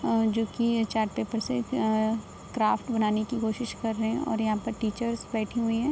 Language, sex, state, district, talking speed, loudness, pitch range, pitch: Hindi, female, Bihar, Sitamarhi, 200 wpm, -28 LUFS, 220-235 Hz, 225 Hz